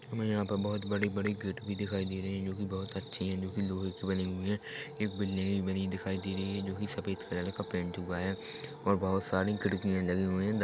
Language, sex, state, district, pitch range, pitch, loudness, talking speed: Hindi, male, Chhattisgarh, Korba, 95-100 Hz, 95 Hz, -35 LUFS, 235 wpm